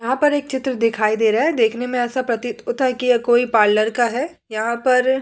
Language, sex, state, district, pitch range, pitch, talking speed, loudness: Hindi, female, Bihar, Vaishali, 225-260 Hz, 245 Hz, 250 wpm, -18 LUFS